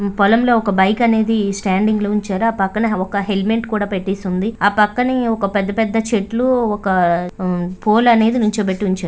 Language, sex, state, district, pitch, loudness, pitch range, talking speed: Telugu, female, Andhra Pradesh, Visakhapatnam, 210 Hz, -17 LUFS, 195-225 Hz, 165 wpm